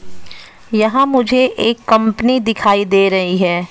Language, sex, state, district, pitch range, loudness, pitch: Hindi, female, Bihar, West Champaran, 185-235 Hz, -14 LUFS, 215 Hz